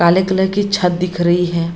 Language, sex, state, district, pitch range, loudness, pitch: Hindi, female, Bihar, Jamui, 175-190 Hz, -16 LUFS, 180 Hz